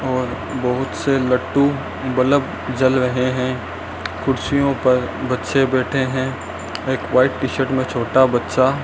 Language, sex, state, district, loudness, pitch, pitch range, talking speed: Hindi, male, Rajasthan, Bikaner, -19 LUFS, 130 Hz, 125-135 Hz, 145 wpm